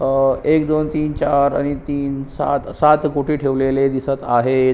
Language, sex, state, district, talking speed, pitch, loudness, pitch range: Marathi, male, Maharashtra, Sindhudurg, 150 wpm, 140 Hz, -18 LUFS, 135-150 Hz